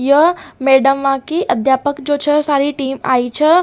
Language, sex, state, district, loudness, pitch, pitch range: Rajasthani, female, Rajasthan, Nagaur, -15 LUFS, 280 Hz, 270-295 Hz